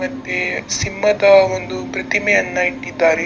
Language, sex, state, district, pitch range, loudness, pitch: Kannada, female, Karnataka, Dakshina Kannada, 165-210 Hz, -16 LUFS, 195 Hz